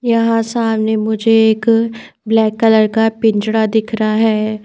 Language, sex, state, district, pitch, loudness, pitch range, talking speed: Hindi, female, Chandigarh, Chandigarh, 220 Hz, -14 LUFS, 220-225 Hz, 140 wpm